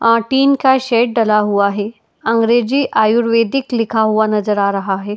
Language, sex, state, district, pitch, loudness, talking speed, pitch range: Hindi, female, Uttar Pradesh, Etah, 230 Hz, -14 LUFS, 175 wpm, 210-240 Hz